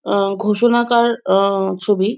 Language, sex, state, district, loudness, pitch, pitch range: Bengali, female, West Bengal, Jhargram, -16 LUFS, 200 Hz, 195-235 Hz